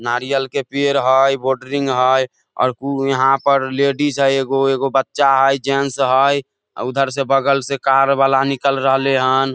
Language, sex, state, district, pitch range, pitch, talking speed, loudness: Maithili, male, Bihar, Samastipur, 135-140 Hz, 135 Hz, 175 wpm, -16 LUFS